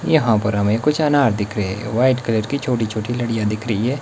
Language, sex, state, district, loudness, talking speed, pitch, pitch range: Hindi, male, Himachal Pradesh, Shimla, -19 LUFS, 255 wpm, 115 Hz, 105-130 Hz